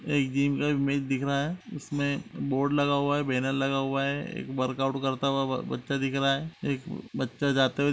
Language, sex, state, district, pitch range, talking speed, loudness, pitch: Hindi, male, Uttar Pradesh, Etah, 135-145 Hz, 225 wpm, -28 LUFS, 140 Hz